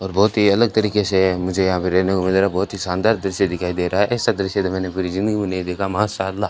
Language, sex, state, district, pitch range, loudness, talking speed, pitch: Hindi, male, Rajasthan, Bikaner, 95-105 Hz, -19 LUFS, 315 wpm, 95 Hz